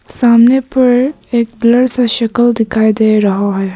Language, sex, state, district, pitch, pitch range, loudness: Hindi, male, Arunachal Pradesh, Papum Pare, 235 Hz, 220-245 Hz, -11 LUFS